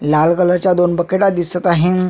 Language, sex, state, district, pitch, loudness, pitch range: Marathi, male, Maharashtra, Sindhudurg, 175 Hz, -14 LUFS, 175-185 Hz